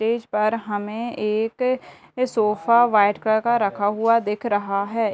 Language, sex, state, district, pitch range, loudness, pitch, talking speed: Hindi, female, Bihar, Gopalganj, 210-235 Hz, -21 LUFS, 220 Hz, 165 wpm